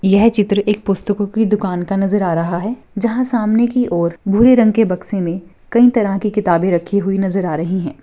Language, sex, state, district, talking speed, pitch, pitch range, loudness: Hindi, female, Rajasthan, Churu, 215 wpm, 200 Hz, 185-220 Hz, -16 LUFS